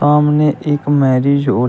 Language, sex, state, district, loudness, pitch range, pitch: Hindi, male, Uttar Pradesh, Shamli, -14 LUFS, 135-150 Hz, 145 Hz